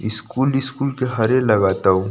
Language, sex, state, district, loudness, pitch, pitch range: Chhattisgarhi, male, Chhattisgarh, Rajnandgaon, -18 LUFS, 115 Hz, 100-135 Hz